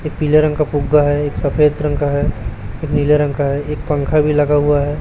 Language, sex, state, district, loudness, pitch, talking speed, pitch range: Hindi, male, Chhattisgarh, Raipur, -16 LUFS, 145 Hz, 265 wpm, 145-150 Hz